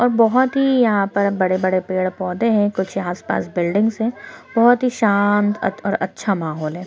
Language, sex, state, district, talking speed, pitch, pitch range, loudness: Hindi, female, Chhattisgarh, Korba, 200 wpm, 205 Hz, 185-230 Hz, -18 LUFS